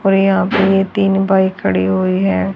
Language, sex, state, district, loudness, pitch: Hindi, female, Haryana, Charkhi Dadri, -14 LUFS, 190 Hz